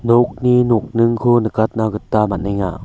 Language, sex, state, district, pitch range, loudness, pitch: Garo, male, Meghalaya, West Garo Hills, 105-120 Hz, -16 LUFS, 115 Hz